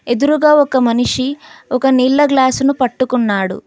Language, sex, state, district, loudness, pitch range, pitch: Telugu, female, Telangana, Hyderabad, -13 LUFS, 250-285 Hz, 260 Hz